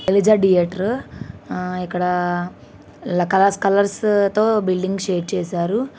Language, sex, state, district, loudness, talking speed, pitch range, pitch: Telugu, female, Andhra Pradesh, Krishna, -19 LUFS, 110 wpm, 180-200 Hz, 190 Hz